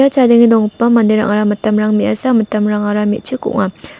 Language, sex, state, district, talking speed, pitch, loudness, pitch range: Garo, female, Meghalaya, West Garo Hills, 135 wpm, 215 Hz, -13 LUFS, 210-235 Hz